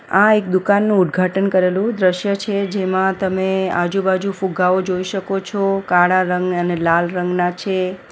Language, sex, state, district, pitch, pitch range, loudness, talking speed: Gujarati, female, Gujarat, Valsad, 190 Hz, 180-195 Hz, -17 LUFS, 150 wpm